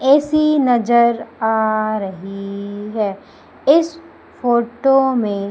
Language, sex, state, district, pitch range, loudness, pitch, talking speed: Hindi, female, Madhya Pradesh, Umaria, 205-270 Hz, -17 LUFS, 235 Hz, 85 wpm